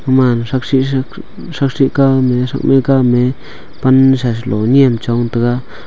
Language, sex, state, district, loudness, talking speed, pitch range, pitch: Wancho, male, Arunachal Pradesh, Longding, -13 LUFS, 165 wpm, 120-135 Hz, 130 Hz